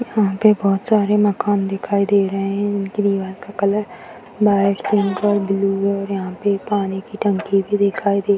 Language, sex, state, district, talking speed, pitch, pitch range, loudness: Hindi, female, Bihar, Purnia, 205 wpm, 200 Hz, 195-205 Hz, -19 LUFS